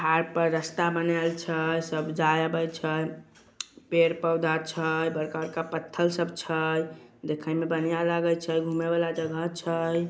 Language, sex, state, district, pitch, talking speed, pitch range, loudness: Magahi, male, Bihar, Samastipur, 165 Hz, 135 wpm, 160-170 Hz, -27 LUFS